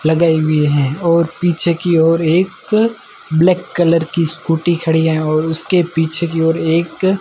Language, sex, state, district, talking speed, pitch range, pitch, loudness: Hindi, male, Rajasthan, Jaisalmer, 165 wpm, 160-175 Hz, 165 Hz, -15 LUFS